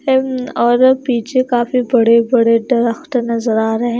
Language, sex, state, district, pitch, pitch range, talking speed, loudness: Hindi, female, Himachal Pradesh, Shimla, 240 Hz, 235-255 Hz, 165 wpm, -14 LUFS